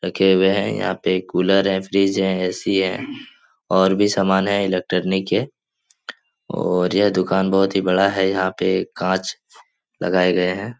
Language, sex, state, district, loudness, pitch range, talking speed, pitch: Hindi, male, Uttar Pradesh, Etah, -19 LUFS, 90-95 Hz, 165 wpm, 95 Hz